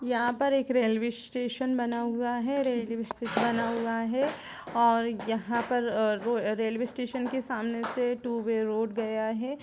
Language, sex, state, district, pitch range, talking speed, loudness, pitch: Hindi, female, Chhattisgarh, Raigarh, 230-250 Hz, 170 wpm, -29 LUFS, 235 Hz